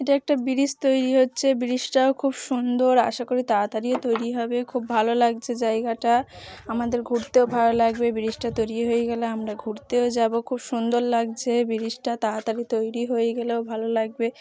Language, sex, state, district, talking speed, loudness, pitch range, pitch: Bengali, female, West Bengal, Jhargram, 160 wpm, -23 LUFS, 230-250 Hz, 235 Hz